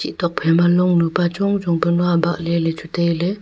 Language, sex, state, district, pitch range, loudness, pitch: Wancho, female, Arunachal Pradesh, Longding, 170-175 Hz, -18 LUFS, 170 Hz